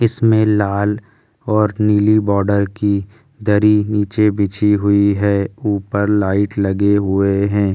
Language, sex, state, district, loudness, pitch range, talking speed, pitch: Hindi, male, Delhi, New Delhi, -16 LUFS, 100-105 Hz, 130 wpm, 105 Hz